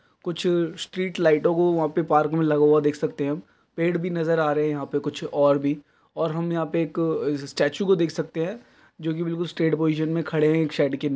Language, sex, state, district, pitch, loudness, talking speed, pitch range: Hindi, male, Uttar Pradesh, Deoria, 160 Hz, -24 LUFS, 245 wpm, 150-170 Hz